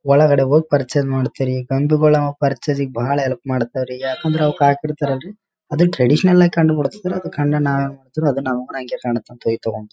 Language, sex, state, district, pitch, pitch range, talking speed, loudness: Kannada, male, Karnataka, Raichur, 140 Hz, 130-150 Hz, 180 wpm, -18 LUFS